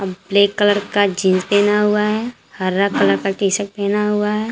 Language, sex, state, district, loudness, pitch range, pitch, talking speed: Hindi, female, Jharkhand, Garhwa, -17 LUFS, 195-210 Hz, 205 Hz, 200 wpm